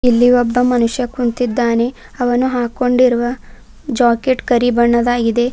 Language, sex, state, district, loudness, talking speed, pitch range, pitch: Kannada, female, Karnataka, Bidar, -15 LUFS, 95 wpm, 235-250 Hz, 245 Hz